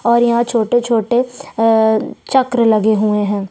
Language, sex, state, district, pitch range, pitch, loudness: Hindi, female, Chhattisgarh, Sukma, 215-240 Hz, 230 Hz, -15 LUFS